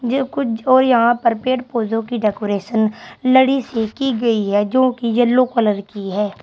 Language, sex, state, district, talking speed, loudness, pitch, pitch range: Hindi, female, Uttar Pradesh, Shamli, 160 wpm, -17 LUFS, 235 Hz, 215-255 Hz